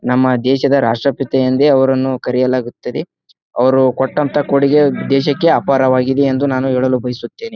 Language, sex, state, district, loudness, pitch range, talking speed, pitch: Kannada, male, Karnataka, Bijapur, -14 LUFS, 130-140 Hz, 120 wpm, 130 Hz